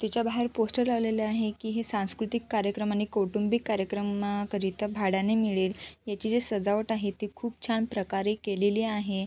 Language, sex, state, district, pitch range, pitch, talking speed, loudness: Marathi, female, Maharashtra, Sindhudurg, 205-225 Hz, 210 Hz, 160 wpm, -29 LUFS